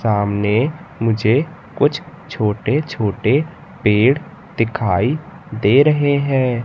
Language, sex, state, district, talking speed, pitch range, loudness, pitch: Hindi, male, Madhya Pradesh, Katni, 90 wpm, 110-155 Hz, -17 LUFS, 135 Hz